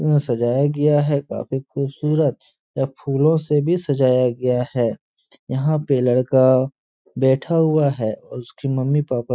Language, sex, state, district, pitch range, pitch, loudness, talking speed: Hindi, male, Uttar Pradesh, Etah, 125-150 Hz, 135 Hz, -19 LUFS, 145 wpm